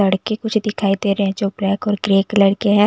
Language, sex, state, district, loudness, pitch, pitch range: Hindi, female, Delhi, New Delhi, -18 LUFS, 200 Hz, 195-210 Hz